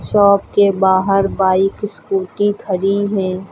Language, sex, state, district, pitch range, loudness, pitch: Hindi, female, Uttar Pradesh, Lucknow, 190-205 Hz, -15 LUFS, 195 Hz